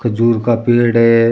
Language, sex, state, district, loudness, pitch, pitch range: Rajasthani, male, Rajasthan, Churu, -13 LUFS, 115 Hz, 115-120 Hz